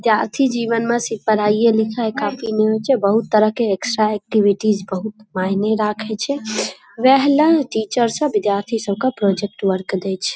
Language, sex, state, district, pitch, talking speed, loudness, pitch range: Maithili, female, Bihar, Saharsa, 215 Hz, 180 wpm, -18 LUFS, 205-235 Hz